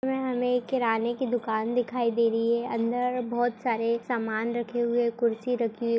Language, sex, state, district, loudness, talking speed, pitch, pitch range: Hindi, female, Chhattisgarh, Rajnandgaon, -27 LUFS, 180 wpm, 235 Hz, 230-245 Hz